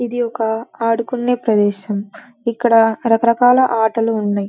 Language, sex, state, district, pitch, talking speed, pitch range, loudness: Telugu, female, Andhra Pradesh, Guntur, 230 Hz, 120 wpm, 220-240 Hz, -16 LUFS